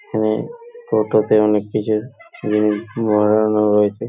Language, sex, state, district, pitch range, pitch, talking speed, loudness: Bengali, male, West Bengal, Paschim Medinipur, 105-110 Hz, 110 Hz, 105 wpm, -18 LUFS